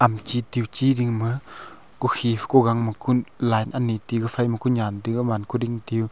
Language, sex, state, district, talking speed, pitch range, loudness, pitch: Wancho, male, Arunachal Pradesh, Longding, 175 wpm, 115-125 Hz, -23 LUFS, 120 Hz